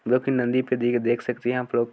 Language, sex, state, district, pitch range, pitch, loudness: Hindi, male, Chhattisgarh, Korba, 120-125 Hz, 125 Hz, -24 LUFS